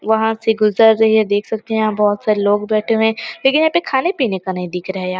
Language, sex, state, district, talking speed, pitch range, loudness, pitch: Hindi, female, Chhattisgarh, Raigarh, 275 wpm, 205-225 Hz, -16 LUFS, 220 Hz